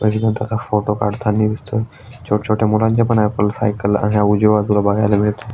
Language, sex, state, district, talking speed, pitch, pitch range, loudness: Marathi, male, Maharashtra, Aurangabad, 205 wpm, 105 Hz, 105-110 Hz, -17 LUFS